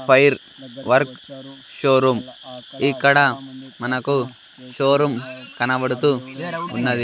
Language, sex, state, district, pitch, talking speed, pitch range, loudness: Telugu, male, Andhra Pradesh, Sri Satya Sai, 130 Hz, 70 wpm, 125-140 Hz, -19 LUFS